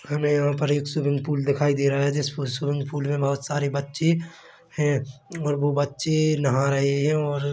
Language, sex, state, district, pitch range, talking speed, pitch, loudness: Hindi, male, Chhattisgarh, Bilaspur, 140-150 Hz, 200 wpm, 145 Hz, -24 LUFS